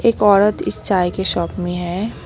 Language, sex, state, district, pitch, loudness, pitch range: Hindi, female, West Bengal, Alipurduar, 190 Hz, -18 LUFS, 175-210 Hz